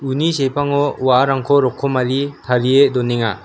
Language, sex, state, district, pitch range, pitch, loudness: Garo, female, Meghalaya, West Garo Hills, 125-140 Hz, 135 Hz, -16 LUFS